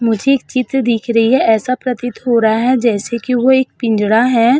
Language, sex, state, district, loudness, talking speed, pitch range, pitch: Hindi, female, Uttar Pradesh, Budaun, -14 LUFS, 220 wpm, 225-255 Hz, 240 Hz